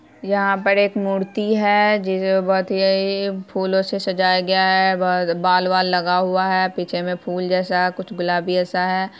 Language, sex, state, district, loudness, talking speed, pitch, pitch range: Hindi, female, Bihar, Saharsa, -19 LUFS, 175 wpm, 190 Hz, 180-195 Hz